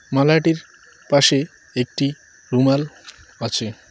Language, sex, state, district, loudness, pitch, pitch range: Bengali, male, West Bengal, Cooch Behar, -19 LUFS, 140 Hz, 135-155 Hz